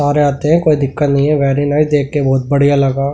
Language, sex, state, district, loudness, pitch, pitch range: Hindi, male, Delhi, New Delhi, -13 LUFS, 145 Hz, 140-145 Hz